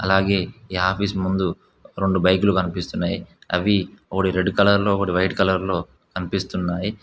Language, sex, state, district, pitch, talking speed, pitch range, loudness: Telugu, male, Telangana, Mahabubabad, 95 Hz, 145 wpm, 90-100 Hz, -21 LUFS